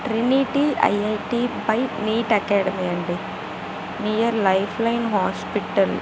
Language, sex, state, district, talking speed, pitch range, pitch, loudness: Telugu, female, Telangana, Karimnagar, 90 wpm, 200-235 Hz, 220 Hz, -22 LUFS